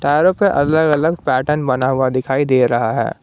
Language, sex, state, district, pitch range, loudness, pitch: Hindi, male, Jharkhand, Garhwa, 130-160 Hz, -16 LUFS, 140 Hz